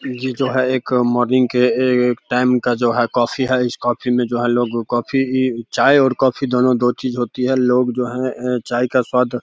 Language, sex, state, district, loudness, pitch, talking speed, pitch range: Hindi, male, Bihar, Begusarai, -17 LUFS, 125 Hz, 210 wpm, 120-130 Hz